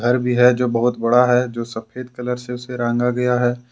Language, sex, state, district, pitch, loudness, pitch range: Hindi, male, Jharkhand, Deoghar, 125 Hz, -19 LUFS, 120-125 Hz